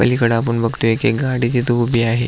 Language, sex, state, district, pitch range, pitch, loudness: Marathi, male, Maharashtra, Aurangabad, 115-125 Hz, 120 Hz, -17 LUFS